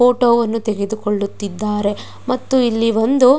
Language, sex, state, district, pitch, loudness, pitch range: Kannada, female, Karnataka, Dakshina Kannada, 225 Hz, -18 LUFS, 210-250 Hz